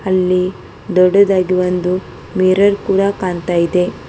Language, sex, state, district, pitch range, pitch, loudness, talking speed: Kannada, female, Karnataka, Bangalore, 180-195 Hz, 185 Hz, -15 LUFS, 105 wpm